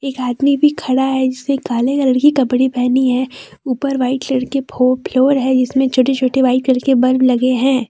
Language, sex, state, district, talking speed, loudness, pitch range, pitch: Hindi, female, Jharkhand, Deoghar, 215 wpm, -15 LUFS, 255-270 Hz, 260 Hz